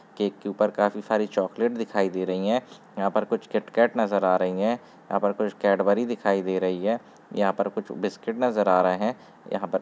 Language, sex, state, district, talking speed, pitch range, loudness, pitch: Hindi, male, Chhattisgarh, Sarguja, 220 wpm, 95-110 Hz, -25 LUFS, 100 Hz